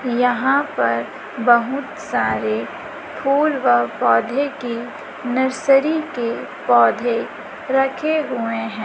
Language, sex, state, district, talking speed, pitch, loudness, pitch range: Hindi, female, Chhattisgarh, Raipur, 95 wpm, 245 Hz, -19 LUFS, 215-275 Hz